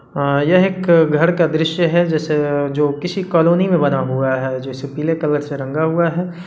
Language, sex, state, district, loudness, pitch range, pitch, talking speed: Hindi, male, Bihar, Sitamarhi, -17 LUFS, 140-170 Hz, 155 Hz, 205 wpm